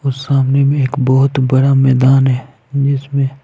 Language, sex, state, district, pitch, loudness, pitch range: Hindi, male, Punjab, Fazilka, 135 Hz, -13 LUFS, 130-140 Hz